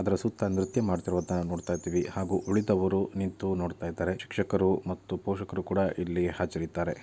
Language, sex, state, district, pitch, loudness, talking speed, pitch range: Kannada, male, Karnataka, Dakshina Kannada, 95 Hz, -30 LUFS, 155 wpm, 90-95 Hz